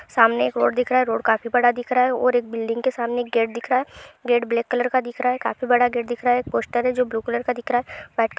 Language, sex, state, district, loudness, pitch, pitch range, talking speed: Hindi, female, Bihar, Supaul, -21 LUFS, 245 Hz, 235-250 Hz, 320 wpm